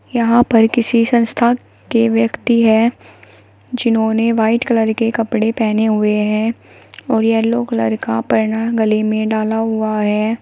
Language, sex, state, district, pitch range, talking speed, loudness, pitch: Hindi, female, Uttar Pradesh, Shamli, 215-230 Hz, 145 wpm, -15 LUFS, 225 Hz